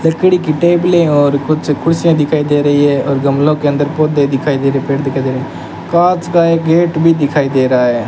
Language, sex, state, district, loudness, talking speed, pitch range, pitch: Hindi, male, Rajasthan, Bikaner, -12 LUFS, 245 wpm, 140-165 Hz, 145 Hz